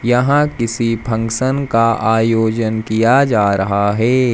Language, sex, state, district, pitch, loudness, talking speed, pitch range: Hindi, male, Madhya Pradesh, Umaria, 115 Hz, -15 LUFS, 125 wpm, 110-125 Hz